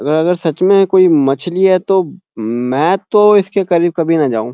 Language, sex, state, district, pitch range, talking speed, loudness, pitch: Hindi, male, Uttarakhand, Uttarkashi, 150-190 Hz, 200 wpm, -13 LUFS, 175 Hz